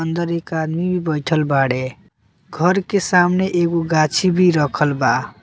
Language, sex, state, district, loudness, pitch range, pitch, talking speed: Bhojpuri, male, Bihar, Muzaffarpur, -18 LUFS, 150-180 Hz, 165 Hz, 155 wpm